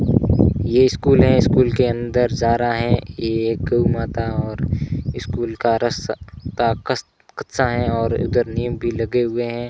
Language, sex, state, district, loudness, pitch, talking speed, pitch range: Hindi, male, Rajasthan, Barmer, -19 LUFS, 120 Hz, 150 wpm, 115-120 Hz